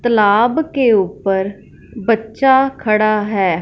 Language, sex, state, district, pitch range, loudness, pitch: Hindi, female, Punjab, Fazilka, 205-245 Hz, -15 LUFS, 215 Hz